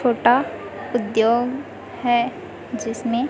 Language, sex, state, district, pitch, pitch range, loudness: Hindi, female, Chhattisgarh, Raipur, 240 Hz, 230-245 Hz, -21 LUFS